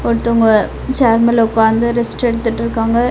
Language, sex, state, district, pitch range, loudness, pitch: Tamil, female, Tamil Nadu, Nilgiris, 225-235 Hz, -14 LUFS, 230 Hz